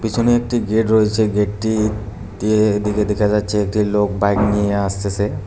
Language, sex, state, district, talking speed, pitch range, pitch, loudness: Bengali, male, West Bengal, Cooch Behar, 155 wpm, 100-110 Hz, 105 Hz, -17 LUFS